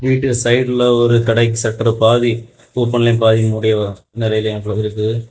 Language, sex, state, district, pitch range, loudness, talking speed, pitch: Tamil, male, Tamil Nadu, Kanyakumari, 110-120 Hz, -15 LUFS, 125 wpm, 115 Hz